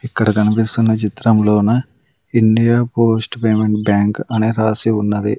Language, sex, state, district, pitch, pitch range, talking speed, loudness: Telugu, male, Andhra Pradesh, Sri Satya Sai, 110 Hz, 105-115 Hz, 120 wpm, -15 LUFS